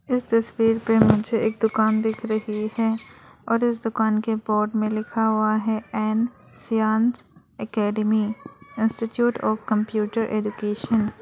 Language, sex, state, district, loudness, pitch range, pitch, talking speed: Hindi, female, Arunachal Pradesh, Lower Dibang Valley, -23 LUFS, 215-225 Hz, 220 Hz, 140 wpm